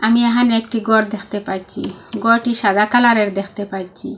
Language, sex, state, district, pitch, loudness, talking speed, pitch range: Bengali, female, Assam, Hailakandi, 220 Hz, -17 LUFS, 160 wpm, 200-235 Hz